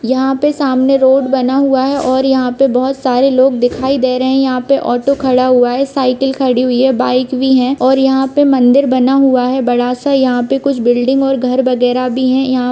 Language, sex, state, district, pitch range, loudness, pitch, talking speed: Hindi, female, Bihar, Vaishali, 255-270 Hz, -12 LUFS, 260 Hz, 230 wpm